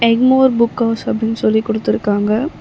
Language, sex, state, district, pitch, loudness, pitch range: Tamil, female, Tamil Nadu, Chennai, 230 Hz, -15 LUFS, 220-235 Hz